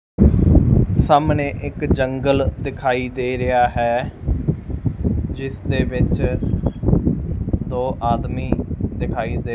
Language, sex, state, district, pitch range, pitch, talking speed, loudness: Punjabi, male, Punjab, Fazilka, 120-135 Hz, 125 Hz, 80 wpm, -20 LUFS